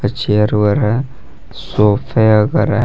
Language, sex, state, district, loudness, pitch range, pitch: Hindi, male, Jharkhand, Palamu, -14 LUFS, 105-110 Hz, 105 Hz